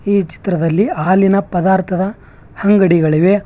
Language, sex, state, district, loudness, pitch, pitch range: Kannada, male, Karnataka, Bangalore, -14 LUFS, 190 Hz, 175-200 Hz